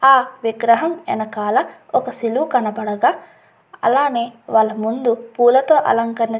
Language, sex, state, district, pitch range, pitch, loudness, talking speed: Telugu, female, Andhra Pradesh, Guntur, 225-260 Hz, 235 Hz, -18 LUFS, 120 wpm